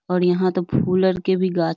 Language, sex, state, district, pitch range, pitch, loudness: Magahi, female, Bihar, Lakhisarai, 180-185 Hz, 180 Hz, -20 LUFS